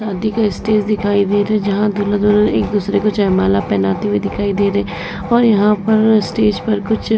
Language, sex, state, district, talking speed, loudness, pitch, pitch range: Hindi, female, Uttar Pradesh, Varanasi, 225 wpm, -15 LUFS, 205 Hz, 200-215 Hz